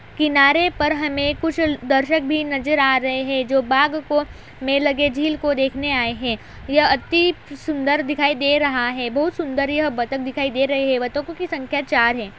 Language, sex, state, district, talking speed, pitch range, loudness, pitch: Hindi, female, Uttar Pradesh, Budaun, 205 wpm, 270-300 Hz, -19 LUFS, 285 Hz